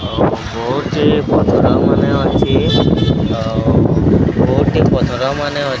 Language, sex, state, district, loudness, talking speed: Odia, male, Odisha, Sambalpur, -14 LUFS, 125 wpm